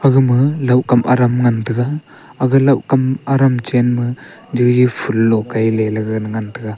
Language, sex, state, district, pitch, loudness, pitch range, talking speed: Wancho, male, Arunachal Pradesh, Longding, 125 Hz, -15 LUFS, 110-130 Hz, 135 wpm